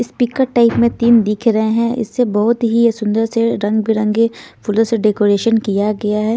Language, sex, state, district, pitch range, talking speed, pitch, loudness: Hindi, female, Bihar, Patna, 215-235 Hz, 180 wpm, 225 Hz, -15 LUFS